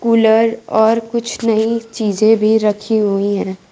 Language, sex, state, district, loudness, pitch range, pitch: Hindi, female, Bihar, Kaimur, -15 LUFS, 210-230 Hz, 220 Hz